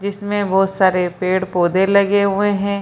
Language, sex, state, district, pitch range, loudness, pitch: Hindi, female, Bihar, Purnia, 185-200 Hz, -17 LUFS, 195 Hz